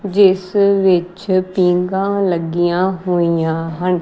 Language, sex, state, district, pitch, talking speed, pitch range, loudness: Punjabi, female, Punjab, Kapurthala, 185 Hz, 90 wpm, 175-195 Hz, -16 LUFS